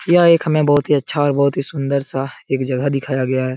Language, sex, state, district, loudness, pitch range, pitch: Hindi, male, Bihar, Supaul, -17 LUFS, 135-145 Hz, 140 Hz